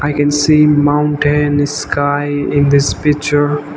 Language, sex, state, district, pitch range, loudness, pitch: English, male, Nagaland, Dimapur, 145-150 Hz, -13 LUFS, 145 Hz